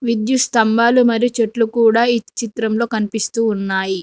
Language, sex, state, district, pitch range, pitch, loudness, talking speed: Telugu, female, Telangana, Mahabubabad, 220-235 Hz, 230 Hz, -16 LUFS, 135 wpm